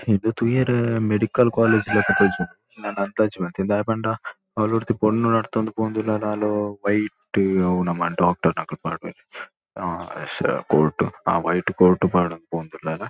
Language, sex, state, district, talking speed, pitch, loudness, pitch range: Tulu, male, Karnataka, Dakshina Kannada, 130 wpm, 105 Hz, -22 LUFS, 95-110 Hz